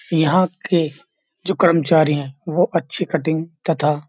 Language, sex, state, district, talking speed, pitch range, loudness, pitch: Hindi, male, Uttar Pradesh, Jyotiba Phule Nagar, 145 wpm, 155-180 Hz, -19 LUFS, 165 Hz